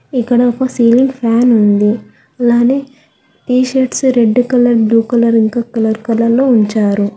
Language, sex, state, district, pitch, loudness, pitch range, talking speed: Telugu, female, Telangana, Hyderabad, 240 Hz, -12 LUFS, 225-250 Hz, 115 wpm